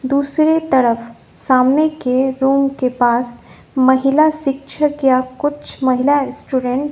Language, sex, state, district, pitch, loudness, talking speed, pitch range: Hindi, female, Bihar, West Champaran, 265 Hz, -16 LUFS, 120 wpm, 255-290 Hz